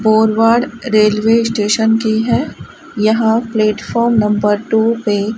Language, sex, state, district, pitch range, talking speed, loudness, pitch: Hindi, female, Rajasthan, Bikaner, 215-230 Hz, 110 wpm, -14 LUFS, 220 Hz